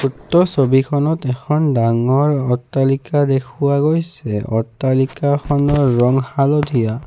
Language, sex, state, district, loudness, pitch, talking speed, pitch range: Assamese, male, Assam, Kamrup Metropolitan, -16 LUFS, 135 Hz, 85 wpm, 130-145 Hz